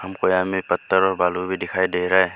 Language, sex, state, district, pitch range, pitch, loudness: Hindi, male, Arunachal Pradesh, Lower Dibang Valley, 90-95 Hz, 95 Hz, -21 LUFS